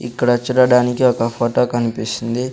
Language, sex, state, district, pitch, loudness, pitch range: Telugu, male, Andhra Pradesh, Sri Satya Sai, 120 Hz, -17 LUFS, 115-125 Hz